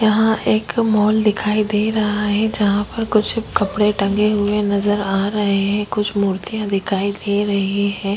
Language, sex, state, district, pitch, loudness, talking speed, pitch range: Hindi, female, Bihar, Vaishali, 210 Hz, -18 LUFS, 170 wpm, 200-215 Hz